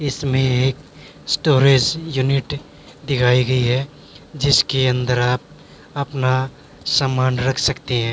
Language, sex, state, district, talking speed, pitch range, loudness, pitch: Hindi, male, Haryana, Jhajjar, 110 wpm, 130-145 Hz, -18 LUFS, 135 Hz